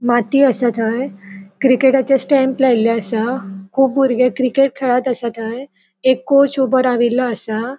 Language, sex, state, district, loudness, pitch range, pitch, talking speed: Konkani, female, Goa, North and South Goa, -16 LUFS, 230-265 Hz, 255 Hz, 140 wpm